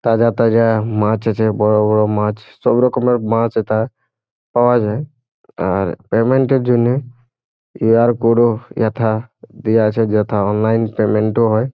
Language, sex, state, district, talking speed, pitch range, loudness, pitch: Bengali, male, West Bengal, Jhargram, 150 wpm, 110-120 Hz, -16 LUFS, 115 Hz